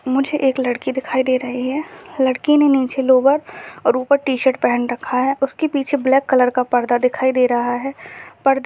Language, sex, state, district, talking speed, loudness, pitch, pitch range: Hindi, female, Uttar Pradesh, Deoria, 210 wpm, -17 LUFS, 265 Hz, 255-280 Hz